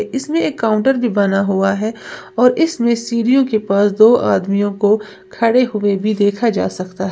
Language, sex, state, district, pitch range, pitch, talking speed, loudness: Hindi, female, Uttar Pradesh, Lalitpur, 200-240 Hz, 215 Hz, 175 wpm, -15 LUFS